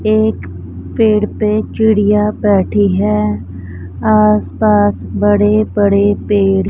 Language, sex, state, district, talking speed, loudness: Hindi, female, Punjab, Pathankot, 100 wpm, -13 LUFS